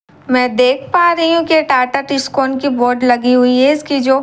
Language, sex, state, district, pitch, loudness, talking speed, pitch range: Hindi, female, Bihar, Katihar, 265 Hz, -13 LUFS, 240 wpm, 250-285 Hz